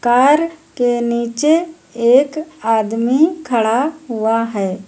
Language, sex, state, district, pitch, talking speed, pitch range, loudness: Hindi, female, Uttar Pradesh, Lucknow, 245 Hz, 100 wpm, 230-310 Hz, -16 LUFS